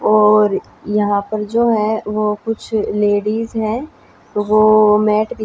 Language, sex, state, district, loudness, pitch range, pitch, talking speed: Hindi, female, Haryana, Jhajjar, -16 LUFS, 210-220 Hz, 215 Hz, 130 wpm